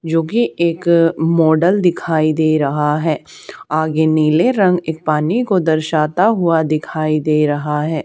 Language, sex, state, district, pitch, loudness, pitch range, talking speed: Hindi, male, Haryana, Charkhi Dadri, 160 Hz, -15 LUFS, 155-170 Hz, 150 wpm